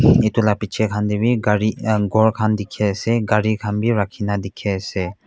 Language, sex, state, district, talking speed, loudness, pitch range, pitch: Nagamese, male, Nagaland, Kohima, 215 wpm, -19 LUFS, 100-110 Hz, 105 Hz